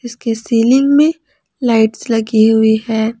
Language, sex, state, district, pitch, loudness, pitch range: Hindi, female, Jharkhand, Ranchi, 230 Hz, -13 LUFS, 220-245 Hz